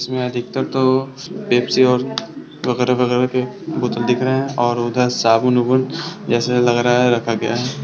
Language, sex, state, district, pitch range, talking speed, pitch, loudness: Hindi, male, Bihar, Sitamarhi, 120-130 Hz, 175 wpm, 125 Hz, -18 LUFS